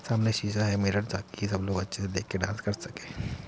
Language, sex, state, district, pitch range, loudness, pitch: Hindi, male, Uttar Pradesh, Muzaffarnagar, 95-105 Hz, -30 LUFS, 100 Hz